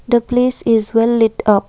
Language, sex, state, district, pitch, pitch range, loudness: English, female, Assam, Kamrup Metropolitan, 230 Hz, 225-245 Hz, -14 LUFS